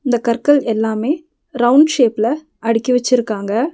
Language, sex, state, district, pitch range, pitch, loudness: Tamil, female, Tamil Nadu, Nilgiris, 225-290 Hz, 245 Hz, -16 LUFS